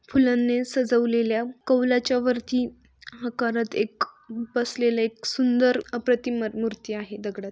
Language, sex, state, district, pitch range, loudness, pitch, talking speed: Marathi, female, Maharashtra, Sindhudurg, 225-250 Hz, -24 LUFS, 240 Hz, 110 wpm